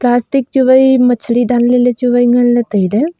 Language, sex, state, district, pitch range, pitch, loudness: Wancho, female, Arunachal Pradesh, Longding, 240-260 Hz, 245 Hz, -11 LUFS